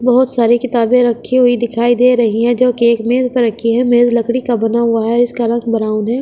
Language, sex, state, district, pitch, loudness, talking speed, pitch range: Hindi, female, Delhi, New Delhi, 240 Hz, -13 LUFS, 250 wpm, 230-245 Hz